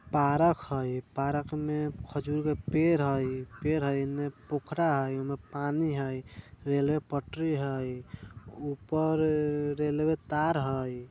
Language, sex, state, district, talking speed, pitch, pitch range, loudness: Bajjika, male, Bihar, Vaishali, 130 wpm, 145 Hz, 135-150 Hz, -30 LUFS